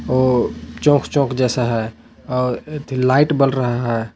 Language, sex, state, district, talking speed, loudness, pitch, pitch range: Hindi, male, Jharkhand, Palamu, 160 wpm, -18 LUFS, 130 Hz, 120-140 Hz